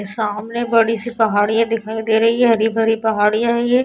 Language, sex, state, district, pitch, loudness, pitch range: Hindi, female, Bihar, Vaishali, 225 Hz, -17 LUFS, 220-230 Hz